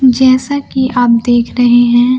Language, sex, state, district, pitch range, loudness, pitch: Hindi, female, Bihar, Kaimur, 240-260 Hz, -10 LUFS, 250 Hz